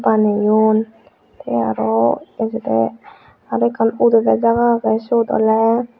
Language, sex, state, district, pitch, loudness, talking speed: Chakma, female, Tripura, Unakoti, 220 Hz, -16 LUFS, 100 wpm